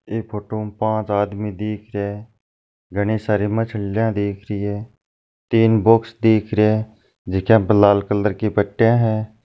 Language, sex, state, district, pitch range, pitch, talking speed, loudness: Marwari, male, Rajasthan, Nagaur, 100-110 Hz, 105 Hz, 150 wpm, -19 LUFS